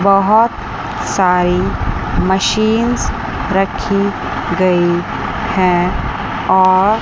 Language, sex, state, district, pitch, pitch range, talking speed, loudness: Hindi, female, Chandigarh, Chandigarh, 185 Hz, 180-200 Hz, 60 wpm, -15 LUFS